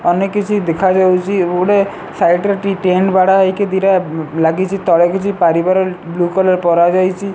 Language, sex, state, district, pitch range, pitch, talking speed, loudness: Odia, male, Odisha, Sambalpur, 175-195 Hz, 185 Hz, 155 wpm, -14 LUFS